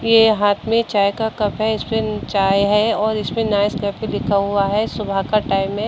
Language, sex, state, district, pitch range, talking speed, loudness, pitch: Hindi, female, Uttar Pradesh, Budaun, 200-220 Hz, 205 wpm, -18 LUFS, 210 Hz